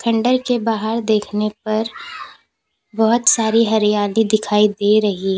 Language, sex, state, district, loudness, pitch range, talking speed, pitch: Hindi, female, Uttar Pradesh, Lalitpur, -17 LUFS, 210-225 Hz, 125 wpm, 220 Hz